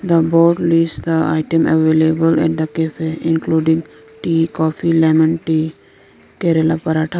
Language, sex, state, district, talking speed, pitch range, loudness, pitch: English, female, Arunachal Pradesh, Lower Dibang Valley, 135 wpm, 160-165 Hz, -16 LUFS, 160 Hz